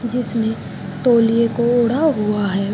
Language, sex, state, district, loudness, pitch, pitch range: Hindi, female, Bihar, Sitamarhi, -18 LUFS, 235 Hz, 215-240 Hz